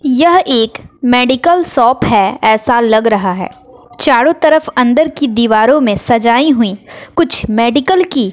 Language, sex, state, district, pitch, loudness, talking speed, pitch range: Hindi, female, Bihar, West Champaran, 250 Hz, -11 LUFS, 145 wpm, 225-305 Hz